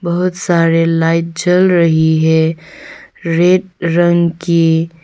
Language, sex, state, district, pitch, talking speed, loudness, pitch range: Hindi, female, Arunachal Pradesh, Longding, 165 Hz, 105 wpm, -13 LUFS, 165-175 Hz